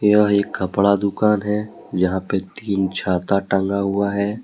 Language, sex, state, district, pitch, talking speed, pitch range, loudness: Hindi, male, Jharkhand, Deoghar, 100 Hz, 160 wpm, 95-105 Hz, -20 LUFS